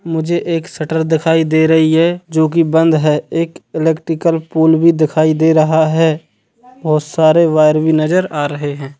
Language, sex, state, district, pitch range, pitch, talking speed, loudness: Hindi, male, Bihar, Sitamarhi, 155-165 Hz, 160 Hz, 180 wpm, -13 LUFS